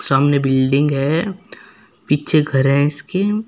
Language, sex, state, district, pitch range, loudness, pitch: Hindi, female, Uttar Pradesh, Shamli, 135-175 Hz, -16 LUFS, 145 Hz